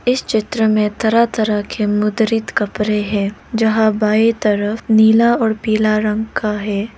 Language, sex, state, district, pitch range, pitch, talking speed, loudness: Hindi, female, Arunachal Pradesh, Lower Dibang Valley, 210-225 Hz, 215 Hz, 155 wpm, -16 LUFS